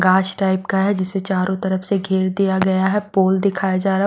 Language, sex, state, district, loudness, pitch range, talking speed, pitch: Hindi, female, Bihar, West Champaran, -19 LUFS, 190-195 Hz, 235 wpm, 190 Hz